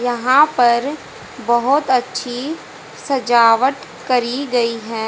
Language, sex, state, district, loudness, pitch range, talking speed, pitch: Hindi, female, Haryana, Jhajjar, -16 LUFS, 235-270 Hz, 95 wpm, 250 Hz